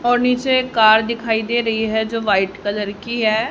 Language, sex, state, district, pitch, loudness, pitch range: Hindi, female, Haryana, Charkhi Dadri, 225 Hz, -17 LUFS, 215-235 Hz